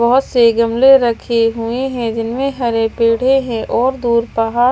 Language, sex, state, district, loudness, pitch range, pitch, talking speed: Hindi, female, Himachal Pradesh, Shimla, -14 LUFS, 230-255 Hz, 235 Hz, 165 wpm